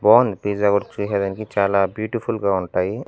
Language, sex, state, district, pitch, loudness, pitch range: Telugu, male, Andhra Pradesh, Annamaya, 100 Hz, -20 LUFS, 100-110 Hz